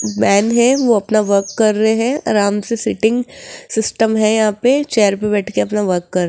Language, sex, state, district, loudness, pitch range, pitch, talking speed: Hindi, female, Rajasthan, Jaipur, -15 LUFS, 205-235 Hz, 220 Hz, 210 wpm